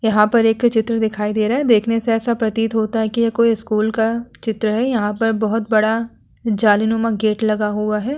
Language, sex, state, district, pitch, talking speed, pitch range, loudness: Hindi, female, Uttar Pradesh, Hamirpur, 225 Hz, 220 wpm, 215-230 Hz, -18 LUFS